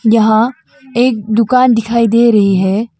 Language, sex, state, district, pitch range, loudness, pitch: Hindi, female, Arunachal Pradesh, Longding, 220-240 Hz, -11 LUFS, 230 Hz